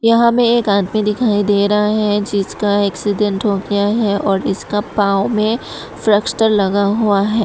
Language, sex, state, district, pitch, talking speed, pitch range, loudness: Hindi, female, Tripura, West Tripura, 205 Hz, 170 wpm, 200-215 Hz, -15 LUFS